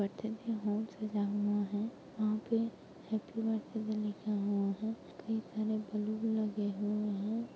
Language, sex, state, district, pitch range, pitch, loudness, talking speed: Hindi, female, Chhattisgarh, Jashpur, 205-220 Hz, 215 Hz, -36 LUFS, 145 wpm